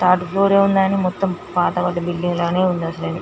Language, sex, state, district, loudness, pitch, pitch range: Telugu, female, Andhra Pradesh, Srikakulam, -18 LUFS, 180 Hz, 175-195 Hz